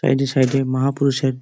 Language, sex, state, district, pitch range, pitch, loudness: Bengali, male, West Bengal, Malda, 130-135 Hz, 135 Hz, -19 LUFS